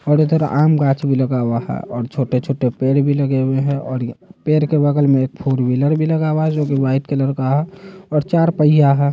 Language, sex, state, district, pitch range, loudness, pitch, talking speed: Hindi, male, Bihar, Saharsa, 130-150 Hz, -17 LUFS, 140 Hz, 245 wpm